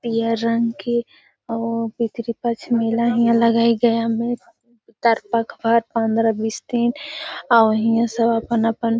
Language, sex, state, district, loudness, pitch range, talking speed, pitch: Hindi, female, Bihar, Gaya, -20 LUFS, 230-235 Hz, 85 wpm, 230 Hz